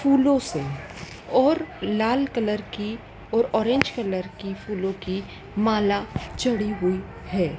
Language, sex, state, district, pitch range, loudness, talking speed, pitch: Hindi, female, Madhya Pradesh, Dhar, 195-245 Hz, -25 LUFS, 125 wpm, 210 Hz